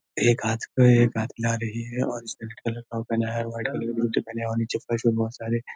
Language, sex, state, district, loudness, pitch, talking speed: Hindi, male, Uttarakhand, Uttarkashi, -25 LUFS, 115 Hz, 210 wpm